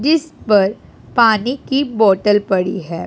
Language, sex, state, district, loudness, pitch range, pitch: Hindi, female, Punjab, Pathankot, -16 LUFS, 195-265 Hz, 215 Hz